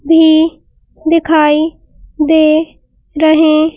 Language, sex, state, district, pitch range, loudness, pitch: Hindi, female, Madhya Pradesh, Bhopal, 310-320 Hz, -11 LUFS, 315 Hz